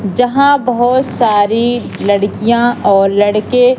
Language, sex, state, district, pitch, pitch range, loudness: Hindi, female, Madhya Pradesh, Katni, 235 Hz, 205-250 Hz, -12 LUFS